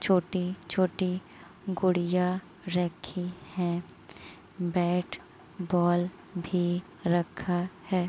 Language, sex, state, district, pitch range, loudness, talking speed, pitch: Hindi, female, Uttar Pradesh, Muzaffarnagar, 175-185 Hz, -30 LUFS, 75 wpm, 180 Hz